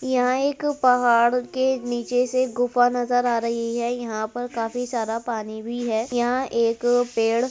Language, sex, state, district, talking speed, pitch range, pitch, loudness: Hindi, female, Uttar Pradesh, Budaun, 175 wpm, 230-250 Hz, 245 Hz, -23 LUFS